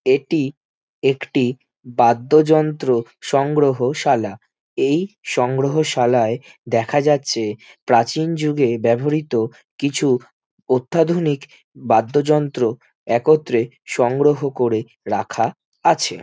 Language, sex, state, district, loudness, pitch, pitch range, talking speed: Bengali, male, West Bengal, Jhargram, -19 LUFS, 135 Hz, 120-150 Hz, 70 wpm